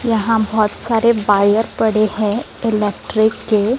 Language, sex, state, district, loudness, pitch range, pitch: Hindi, female, Maharashtra, Gondia, -16 LUFS, 210-225 Hz, 220 Hz